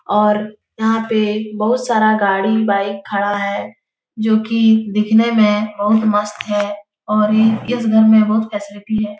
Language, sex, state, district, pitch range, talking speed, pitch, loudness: Hindi, female, Bihar, Jahanabad, 205-220 Hz, 165 wpm, 215 Hz, -16 LUFS